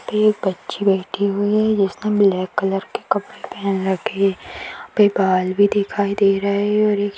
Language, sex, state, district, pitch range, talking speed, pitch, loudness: Hindi, female, Maharashtra, Nagpur, 195-205 Hz, 185 wpm, 200 Hz, -19 LUFS